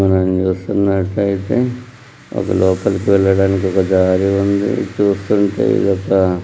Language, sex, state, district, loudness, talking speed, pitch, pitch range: Telugu, male, Andhra Pradesh, Srikakulam, -15 LUFS, 110 wpm, 95 Hz, 95-100 Hz